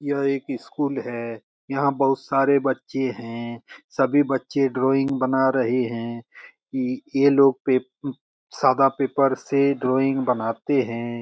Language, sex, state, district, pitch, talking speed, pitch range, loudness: Hindi, male, Bihar, Lakhisarai, 135 Hz, 140 wpm, 125-140 Hz, -22 LUFS